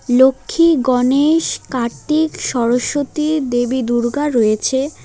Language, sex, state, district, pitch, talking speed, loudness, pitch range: Bengali, female, West Bengal, Alipurduar, 265 Hz, 85 wpm, -16 LUFS, 245-300 Hz